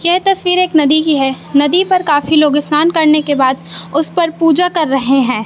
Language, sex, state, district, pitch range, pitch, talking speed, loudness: Hindi, male, Madhya Pradesh, Katni, 285-340 Hz, 305 Hz, 220 wpm, -12 LUFS